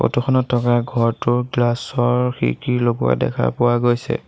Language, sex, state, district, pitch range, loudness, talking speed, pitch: Assamese, male, Assam, Sonitpur, 120-125 Hz, -19 LUFS, 140 wpm, 120 Hz